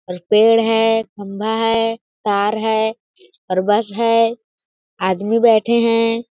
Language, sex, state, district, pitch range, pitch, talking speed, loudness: Hindi, female, Chhattisgarh, Balrampur, 210-230 Hz, 225 Hz, 135 wpm, -17 LUFS